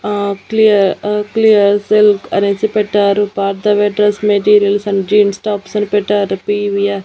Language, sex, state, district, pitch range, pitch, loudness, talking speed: Telugu, female, Andhra Pradesh, Annamaya, 200-210 Hz, 205 Hz, -13 LUFS, 135 wpm